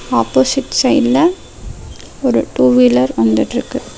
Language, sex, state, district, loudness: Tamil, female, Tamil Nadu, Namakkal, -13 LUFS